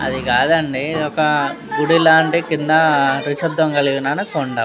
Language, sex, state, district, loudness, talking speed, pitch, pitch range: Telugu, male, Telangana, Nalgonda, -16 LUFS, 115 wpm, 150 Hz, 140-160 Hz